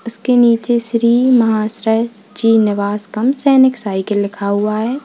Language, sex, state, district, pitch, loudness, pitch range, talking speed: Hindi, female, Uttar Pradesh, Lalitpur, 225 Hz, -14 LUFS, 210-240 Hz, 140 wpm